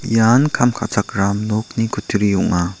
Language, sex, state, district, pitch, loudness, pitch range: Garo, male, Meghalaya, South Garo Hills, 105 Hz, -17 LUFS, 100-115 Hz